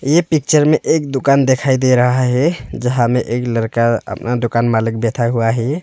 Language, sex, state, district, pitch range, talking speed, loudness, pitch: Hindi, male, Arunachal Pradesh, Longding, 115-140 Hz, 195 wpm, -15 LUFS, 125 Hz